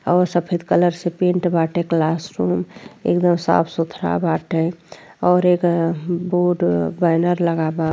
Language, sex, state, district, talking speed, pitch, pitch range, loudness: Bhojpuri, female, Uttar Pradesh, Deoria, 145 wpm, 170 Hz, 165-175 Hz, -19 LUFS